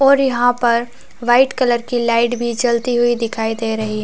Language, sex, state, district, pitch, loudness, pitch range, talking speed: Hindi, female, Chhattisgarh, Raigarh, 240 Hz, -16 LUFS, 230-245 Hz, 220 wpm